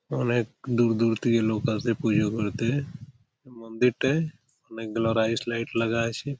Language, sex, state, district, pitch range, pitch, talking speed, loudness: Bengali, male, West Bengal, Malda, 115-125 Hz, 115 Hz, 120 wpm, -26 LUFS